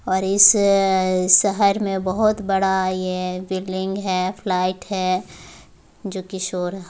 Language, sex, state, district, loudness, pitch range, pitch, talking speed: Hindi, female, Bihar, Muzaffarpur, -19 LUFS, 185-195 Hz, 190 Hz, 120 wpm